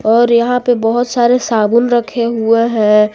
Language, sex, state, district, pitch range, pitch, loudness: Hindi, female, Jharkhand, Garhwa, 225-240 Hz, 235 Hz, -12 LUFS